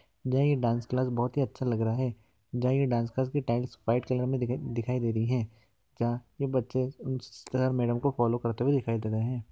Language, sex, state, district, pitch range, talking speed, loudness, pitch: Hindi, male, Rajasthan, Churu, 115-130 Hz, 225 wpm, -30 LUFS, 125 Hz